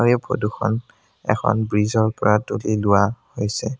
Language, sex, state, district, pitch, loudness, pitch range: Assamese, male, Assam, Sonitpur, 110 Hz, -21 LUFS, 105-115 Hz